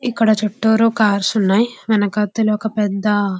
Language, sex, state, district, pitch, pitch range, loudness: Telugu, female, Andhra Pradesh, Visakhapatnam, 215 Hz, 205-220 Hz, -17 LUFS